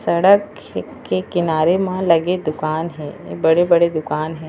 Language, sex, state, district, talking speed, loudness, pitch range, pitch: Chhattisgarhi, female, Chhattisgarh, Raigarh, 145 wpm, -17 LUFS, 155-175 Hz, 165 Hz